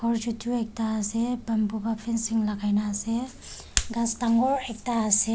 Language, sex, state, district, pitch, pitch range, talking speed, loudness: Nagamese, female, Nagaland, Kohima, 230 Hz, 220-235 Hz, 155 wpm, -27 LUFS